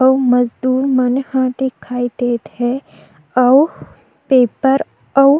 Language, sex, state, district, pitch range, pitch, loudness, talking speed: Chhattisgarhi, female, Chhattisgarh, Jashpur, 245-270 Hz, 255 Hz, -15 LUFS, 135 wpm